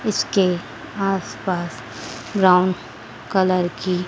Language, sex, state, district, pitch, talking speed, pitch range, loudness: Hindi, female, Madhya Pradesh, Dhar, 185 Hz, 75 wpm, 175-195 Hz, -21 LUFS